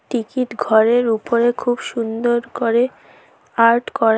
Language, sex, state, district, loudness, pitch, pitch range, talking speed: Bengali, female, West Bengal, Cooch Behar, -18 LUFS, 235 Hz, 230-245 Hz, 115 wpm